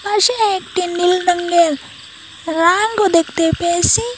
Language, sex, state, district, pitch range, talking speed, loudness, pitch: Bengali, female, Assam, Hailakandi, 345-410 Hz, 100 wpm, -15 LUFS, 360 Hz